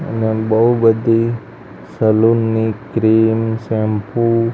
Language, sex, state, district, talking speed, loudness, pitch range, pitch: Gujarati, male, Gujarat, Gandhinagar, 120 wpm, -15 LUFS, 110-115 Hz, 115 Hz